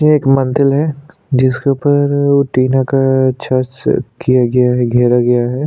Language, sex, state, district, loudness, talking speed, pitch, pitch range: Hindi, male, Chhattisgarh, Sukma, -13 LUFS, 170 wpm, 130 Hz, 125-140 Hz